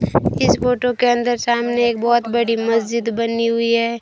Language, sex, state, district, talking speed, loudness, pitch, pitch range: Hindi, female, Rajasthan, Bikaner, 180 wpm, -18 LUFS, 235 Hz, 230-240 Hz